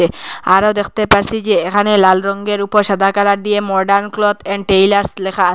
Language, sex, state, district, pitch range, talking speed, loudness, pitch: Bengali, female, Assam, Hailakandi, 190-205 Hz, 195 wpm, -13 LUFS, 200 Hz